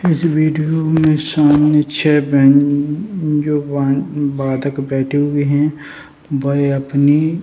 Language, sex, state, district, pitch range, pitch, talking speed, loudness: Hindi, male, Bihar, Jahanabad, 140-155 Hz, 145 Hz, 105 wpm, -15 LUFS